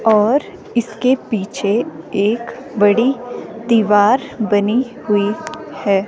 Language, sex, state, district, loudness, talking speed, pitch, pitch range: Hindi, female, Himachal Pradesh, Shimla, -17 LUFS, 90 wpm, 225 Hz, 205-255 Hz